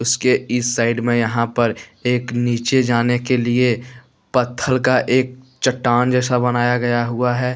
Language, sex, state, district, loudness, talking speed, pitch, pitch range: Hindi, male, Jharkhand, Deoghar, -18 LUFS, 160 wpm, 120 Hz, 120-125 Hz